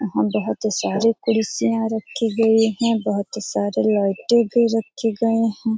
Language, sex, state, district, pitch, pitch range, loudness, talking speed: Hindi, female, Bihar, Jamui, 225 Hz, 205-230 Hz, -20 LUFS, 155 wpm